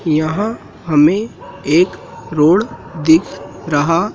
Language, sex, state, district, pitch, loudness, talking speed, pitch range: Hindi, male, Madhya Pradesh, Dhar, 165 Hz, -15 LUFS, 85 wpm, 155-190 Hz